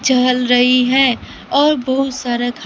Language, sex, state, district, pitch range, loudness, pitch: Hindi, female, Bihar, Kaimur, 250-270 Hz, -14 LUFS, 255 Hz